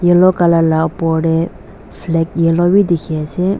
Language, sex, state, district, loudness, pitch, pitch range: Nagamese, female, Nagaland, Dimapur, -14 LUFS, 165 Hz, 165-175 Hz